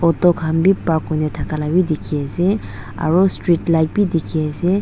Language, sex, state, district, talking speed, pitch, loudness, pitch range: Nagamese, female, Nagaland, Dimapur, 175 wpm, 160 Hz, -18 LUFS, 155-175 Hz